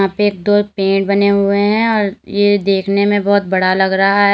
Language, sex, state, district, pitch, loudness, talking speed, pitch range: Hindi, female, Uttar Pradesh, Lalitpur, 200 Hz, -14 LUFS, 235 wpm, 195-205 Hz